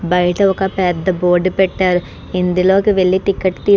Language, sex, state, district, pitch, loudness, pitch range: Telugu, female, Andhra Pradesh, Krishna, 185 Hz, -15 LUFS, 180-195 Hz